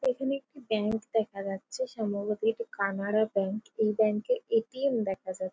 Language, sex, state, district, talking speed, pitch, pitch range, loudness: Bengali, female, West Bengal, Jalpaiguri, 160 wpm, 215 Hz, 200-235 Hz, -30 LUFS